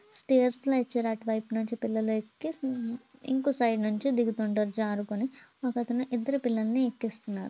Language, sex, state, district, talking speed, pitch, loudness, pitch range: Telugu, female, Andhra Pradesh, Visakhapatnam, 130 wpm, 240 Hz, -30 LUFS, 220-260 Hz